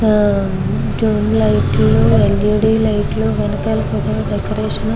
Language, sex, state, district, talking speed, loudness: Telugu, female, Andhra Pradesh, Guntur, 110 wpm, -16 LUFS